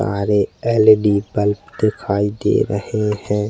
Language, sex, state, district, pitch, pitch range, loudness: Hindi, male, Chhattisgarh, Jashpur, 105 Hz, 100-110 Hz, -17 LUFS